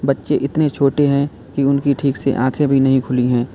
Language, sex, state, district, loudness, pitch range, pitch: Hindi, male, Uttar Pradesh, Lalitpur, -17 LUFS, 130-140 Hz, 135 Hz